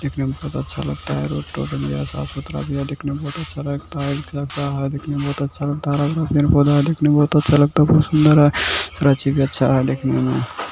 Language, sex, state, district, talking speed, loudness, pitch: Hindi, male, Bihar, Kishanganj, 200 wpm, -19 LUFS, 140 Hz